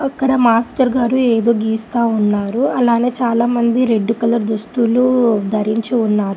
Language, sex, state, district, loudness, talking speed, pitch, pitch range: Telugu, female, Telangana, Hyderabad, -15 LUFS, 120 wpm, 235 Hz, 220-245 Hz